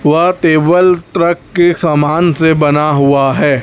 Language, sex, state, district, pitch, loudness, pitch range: Hindi, male, Chhattisgarh, Raipur, 160 Hz, -11 LUFS, 150-175 Hz